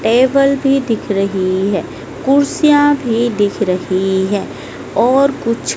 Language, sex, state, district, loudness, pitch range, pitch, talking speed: Hindi, female, Madhya Pradesh, Dhar, -14 LUFS, 195-275 Hz, 230 Hz, 125 wpm